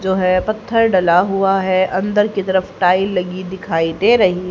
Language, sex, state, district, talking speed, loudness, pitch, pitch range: Hindi, female, Haryana, Jhajjar, 185 wpm, -16 LUFS, 190 Hz, 185-195 Hz